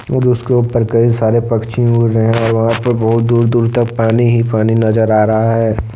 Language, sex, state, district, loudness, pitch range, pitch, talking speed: Hindi, male, Jharkhand, Deoghar, -13 LUFS, 110-120 Hz, 115 Hz, 210 wpm